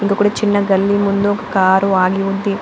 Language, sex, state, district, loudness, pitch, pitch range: Telugu, female, Andhra Pradesh, Anantapur, -15 LUFS, 200 Hz, 195-205 Hz